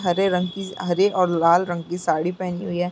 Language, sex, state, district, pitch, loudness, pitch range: Hindi, female, Bihar, Muzaffarpur, 180 Hz, -22 LUFS, 175-185 Hz